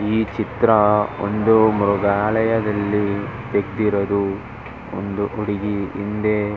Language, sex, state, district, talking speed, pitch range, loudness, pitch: Kannada, male, Karnataka, Dharwad, 75 wpm, 100-110 Hz, -20 LUFS, 105 Hz